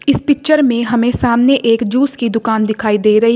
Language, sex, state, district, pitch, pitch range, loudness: Hindi, female, Uttar Pradesh, Shamli, 235 Hz, 225-270 Hz, -13 LUFS